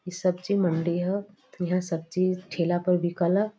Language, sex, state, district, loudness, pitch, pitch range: Bhojpuri, female, Uttar Pradesh, Varanasi, -27 LUFS, 180 Hz, 175-190 Hz